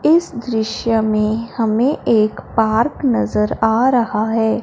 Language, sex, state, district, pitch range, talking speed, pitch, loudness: Hindi, female, Punjab, Fazilka, 220-235 Hz, 130 wpm, 225 Hz, -17 LUFS